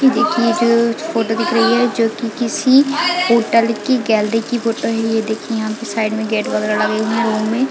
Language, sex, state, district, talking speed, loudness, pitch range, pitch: Hindi, female, Chhattisgarh, Raigarh, 225 wpm, -16 LUFS, 220-240 Hz, 230 Hz